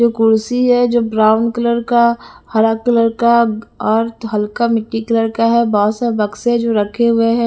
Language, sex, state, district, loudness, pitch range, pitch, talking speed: Hindi, female, Bihar, West Champaran, -15 LUFS, 220-235 Hz, 230 Hz, 185 wpm